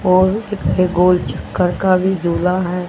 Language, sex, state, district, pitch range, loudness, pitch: Hindi, female, Haryana, Charkhi Dadri, 175-185 Hz, -16 LUFS, 180 Hz